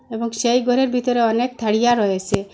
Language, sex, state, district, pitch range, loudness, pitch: Bengali, female, Assam, Hailakandi, 215-245 Hz, -19 LUFS, 235 Hz